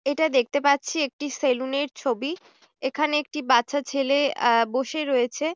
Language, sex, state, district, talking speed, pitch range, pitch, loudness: Bengali, female, West Bengal, Jhargram, 150 wpm, 260-295 Hz, 280 Hz, -24 LUFS